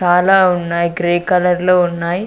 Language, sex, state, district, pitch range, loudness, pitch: Telugu, female, Andhra Pradesh, Sri Satya Sai, 175-180 Hz, -14 LUFS, 175 Hz